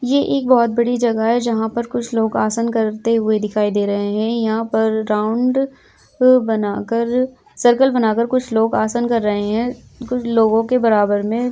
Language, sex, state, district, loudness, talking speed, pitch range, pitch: Hindi, female, Uttar Pradesh, Jyotiba Phule Nagar, -17 LUFS, 175 wpm, 220-245 Hz, 230 Hz